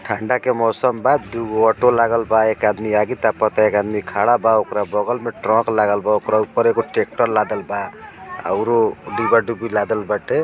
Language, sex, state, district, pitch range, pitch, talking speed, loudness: Bhojpuri, male, Bihar, East Champaran, 105-115 Hz, 110 Hz, 155 wpm, -18 LUFS